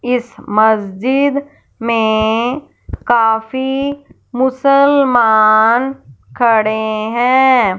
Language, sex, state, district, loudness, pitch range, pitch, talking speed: Hindi, female, Punjab, Fazilka, -13 LUFS, 220-265 Hz, 240 Hz, 55 wpm